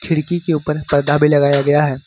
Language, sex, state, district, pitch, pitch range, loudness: Hindi, male, Jharkhand, Ranchi, 150 Hz, 145-155 Hz, -15 LUFS